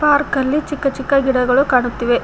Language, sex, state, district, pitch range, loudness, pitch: Kannada, female, Karnataka, Koppal, 250-285 Hz, -16 LUFS, 270 Hz